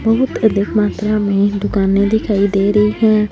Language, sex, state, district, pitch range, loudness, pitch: Hindi, female, Punjab, Fazilka, 200-215 Hz, -15 LUFS, 210 Hz